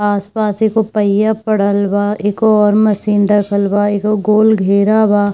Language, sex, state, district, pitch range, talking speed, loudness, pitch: Hindi, female, Bihar, Darbhanga, 205-215 Hz, 155 wpm, -13 LUFS, 210 Hz